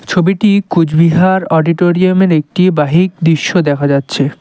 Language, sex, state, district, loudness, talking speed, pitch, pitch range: Bengali, male, West Bengal, Cooch Behar, -11 LUFS, 120 wpm, 170 Hz, 155-185 Hz